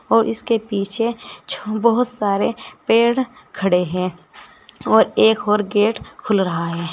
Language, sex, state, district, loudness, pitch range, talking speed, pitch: Hindi, female, Uttar Pradesh, Saharanpur, -19 LUFS, 185-230 Hz, 130 wpm, 210 Hz